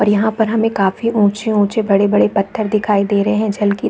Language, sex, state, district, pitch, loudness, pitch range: Hindi, female, Bihar, Saharsa, 210 Hz, -15 LUFS, 200-220 Hz